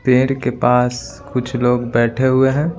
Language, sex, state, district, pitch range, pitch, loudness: Hindi, male, Bihar, Patna, 125-130 Hz, 125 Hz, -17 LUFS